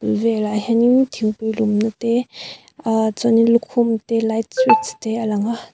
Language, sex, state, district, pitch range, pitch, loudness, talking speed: Mizo, female, Mizoram, Aizawl, 220-235 Hz, 225 Hz, -18 LUFS, 165 wpm